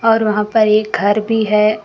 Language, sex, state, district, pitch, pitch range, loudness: Hindi, female, Karnataka, Koppal, 215 Hz, 210-220 Hz, -14 LUFS